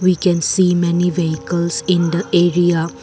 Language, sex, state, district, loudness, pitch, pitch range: English, female, Assam, Kamrup Metropolitan, -16 LUFS, 175 Hz, 170-180 Hz